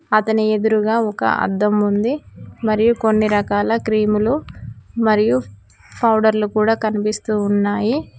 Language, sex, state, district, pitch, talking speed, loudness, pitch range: Telugu, female, Telangana, Mahabubabad, 215 Hz, 105 wpm, -18 LUFS, 210-225 Hz